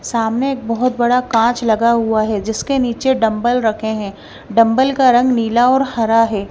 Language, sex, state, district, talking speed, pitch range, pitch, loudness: Hindi, female, Punjab, Kapurthala, 185 wpm, 225-250 Hz, 235 Hz, -15 LUFS